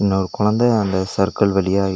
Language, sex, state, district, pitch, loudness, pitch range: Tamil, male, Tamil Nadu, Nilgiris, 95 Hz, -18 LUFS, 95-105 Hz